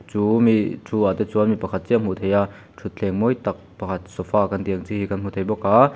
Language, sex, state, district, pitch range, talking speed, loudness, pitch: Mizo, male, Mizoram, Aizawl, 95-110 Hz, 270 wpm, -22 LUFS, 100 Hz